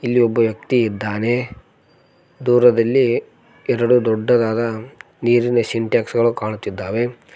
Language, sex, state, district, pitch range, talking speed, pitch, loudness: Kannada, male, Karnataka, Koppal, 110-120 Hz, 90 wpm, 120 Hz, -18 LUFS